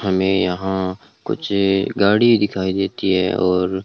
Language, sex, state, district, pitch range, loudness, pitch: Hindi, male, Rajasthan, Bikaner, 95-100 Hz, -18 LUFS, 95 Hz